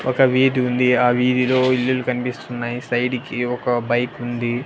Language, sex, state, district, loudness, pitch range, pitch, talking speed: Telugu, male, Andhra Pradesh, Annamaya, -19 LUFS, 120-125 Hz, 125 Hz, 155 wpm